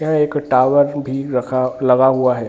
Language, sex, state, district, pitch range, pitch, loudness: Hindi, male, Bihar, Gaya, 130-145 Hz, 130 Hz, -16 LUFS